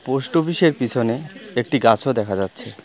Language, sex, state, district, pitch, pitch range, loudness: Bengali, male, West Bengal, Cooch Behar, 125 Hz, 115-140 Hz, -20 LUFS